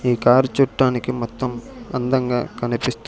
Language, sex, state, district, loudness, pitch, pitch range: Telugu, male, Andhra Pradesh, Sri Satya Sai, -20 LUFS, 125 Hz, 120-130 Hz